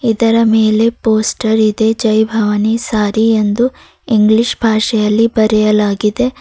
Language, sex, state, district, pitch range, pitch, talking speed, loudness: Kannada, female, Karnataka, Bidar, 215-225 Hz, 220 Hz, 110 wpm, -12 LUFS